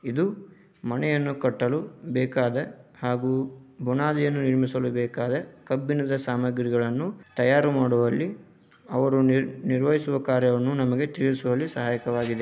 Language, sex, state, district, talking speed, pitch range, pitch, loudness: Kannada, male, Karnataka, Dharwad, 85 wpm, 125-145 Hz, 130 Hz, -25 LUFS